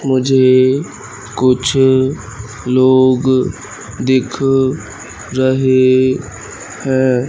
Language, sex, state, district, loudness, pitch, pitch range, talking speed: Hindi, male, Madhya Pradesh, Katni, -13 LUFS, 130 Hz, 125-130 Hz, 50 wpm